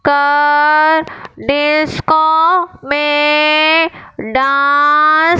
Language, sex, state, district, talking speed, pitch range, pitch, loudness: Hindi, female, Punjab, Fazilka, 55 wpm, 290-315 Hz, 300 Hz, -11 LUFS